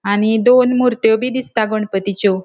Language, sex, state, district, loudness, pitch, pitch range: Konkani, female, Goa, North and South Goa, -15 LUFS, 220 Hz, 205-250 Hz